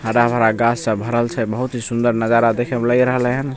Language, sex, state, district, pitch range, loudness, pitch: Maithili, male, Bihar, Begusarai, 115-120 Hz, -18 LUFS, 120 Hz